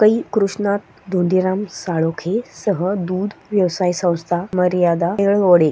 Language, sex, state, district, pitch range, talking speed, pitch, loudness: Marathi, female, Maharashtra, Sindhudurg, 175-200 Hz, 105 wpm, 185 Hz, -19 LUFS